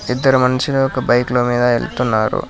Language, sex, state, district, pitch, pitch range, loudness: Telugu, male, Telangana, Hyderabad, 125 Hz, 120-130 Hz, -16 LUFS